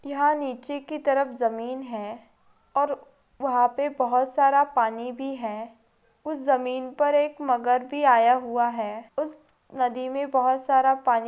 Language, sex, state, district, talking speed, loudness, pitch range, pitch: Hindi, female, Chhattisgarh, Rajnandgaon, 160 wpm, -25 LUFS, 240-280 Hz, 260 Hz